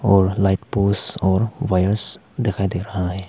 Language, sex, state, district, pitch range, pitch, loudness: Hindi, male, Arunachal Pradesh, Papum Pare, 95-105 Hz, 95 Hz, -20 LUFS